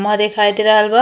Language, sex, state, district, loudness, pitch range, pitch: Bhojpuri, female, Uttar Pradesh, Ghazipur, -13 LUFS, 210-215 Hz, 210 Hz